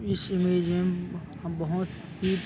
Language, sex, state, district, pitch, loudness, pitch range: Hindi, male, Chhattisgarh, Raigarh, 180 Hz, -29 LUFS, 170-185 Hz